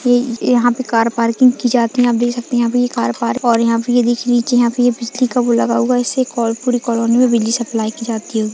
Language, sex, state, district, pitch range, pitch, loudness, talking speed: Hindi, female, Maharashtra, Chandrapur, 230-245 Hz, 240 Hz, -15 LUFS, 275 wpm